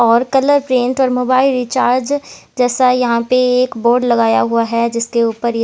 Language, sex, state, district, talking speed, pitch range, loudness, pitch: Hindi, female, Haryana, Jhajjar, 180 wpm, 235-255 Hz, -14 LUFS, 250 Hz